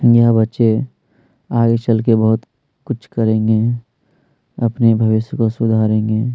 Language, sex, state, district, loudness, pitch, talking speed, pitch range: Hindi, male, Chhattisgarh, Kabirdham, -16 LUFS, 115 Hz, 105 wpm, 110-120 Hz